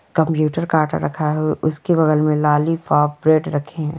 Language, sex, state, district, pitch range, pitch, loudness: Hindi, female, Bihar, Jamui, 150-160 Hz, 155 Hz, -18 LUFS